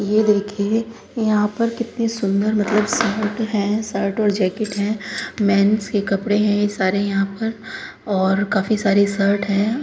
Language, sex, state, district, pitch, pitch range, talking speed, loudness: Hindi, female, Uttar Pradesh, Hamirpur, 210 Hz, 200-220 Hz, 155 wpm, -19 LUFS